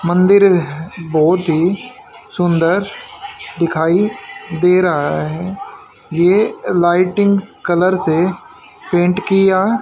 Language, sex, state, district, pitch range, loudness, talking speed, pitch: Hindi, male, Haryana, Rohtak, 170-200 Hz, -15 LUFS, 85 wpm, 180 Hz